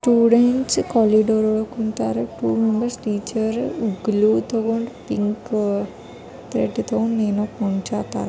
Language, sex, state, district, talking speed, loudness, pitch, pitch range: Kannada, male, Karnataka, Dharwad, 50 wpm, -21 LUFS, 220 Hz, 205-230 Hz